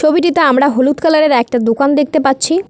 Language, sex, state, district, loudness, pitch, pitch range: Bengali, female, West Bengal, Cooch Behar, -12 LUFS, 290 Hz, 270-315 Hz